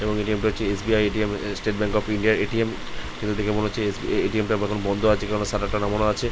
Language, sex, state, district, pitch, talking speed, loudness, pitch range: Bengali, male, West Bengal, Jhargram, 105 Hz, 235 wpm, -24 LUFS, 105-110 Hz